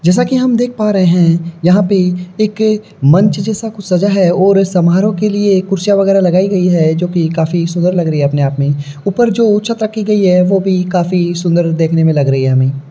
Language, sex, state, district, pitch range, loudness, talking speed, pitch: Hindi, male, Uttar Pradesh, Varanasi, 170-205 Hz, -12 LUFS, 230 wpm, 180 Hz